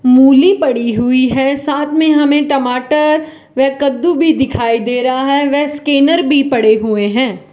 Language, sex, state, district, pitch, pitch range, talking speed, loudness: Hindi, female, Rajasthan, Bikaner, 275 Hz, 250-295 Hz, 165 wpm, -12 LUFS